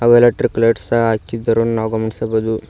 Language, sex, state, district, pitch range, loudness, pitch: Kannada, male, Karnataka, Koppal, 110-115 Hz, -16 LUFS, 115 Hz